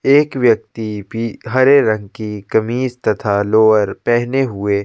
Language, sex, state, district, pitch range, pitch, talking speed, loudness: Hindi, male, Chhattisgarh, Sukma, 105-130 Hz, 110 Hz, 135 wpm, -16 LUFS